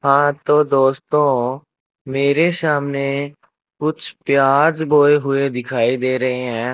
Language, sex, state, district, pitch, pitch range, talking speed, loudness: Hindi, male, Rajasthan, Bikaner, 140 Hz, 130-150 Hz, 115 wpm, -17 LUFS